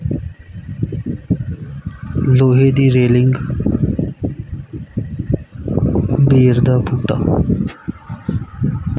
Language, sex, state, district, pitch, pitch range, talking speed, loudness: Punjabi, male, Punjab, Kapurthala, 125 Hz, 125-135 Hz, 40 wpm, -16 LUFS